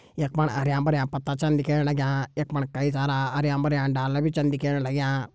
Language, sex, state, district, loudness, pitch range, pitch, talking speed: Garhwali, male, Uttarakhand, Tehri Garhwal, -25 LUFS, 135-150 Hz, 140 Hz, 215 wpm